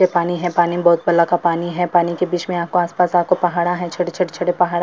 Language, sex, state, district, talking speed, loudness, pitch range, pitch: Hindi, female, Andhra Pradesh, Anantapur, 160 wpm, -18 LUFS, 175-180 Hz, 175 Hz